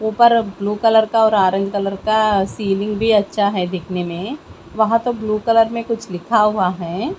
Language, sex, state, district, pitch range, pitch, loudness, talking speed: Hindi, female, Haryana, Jhajjar, 195-220 Hz, 210 Hz, -17 LUFS, 190 wpm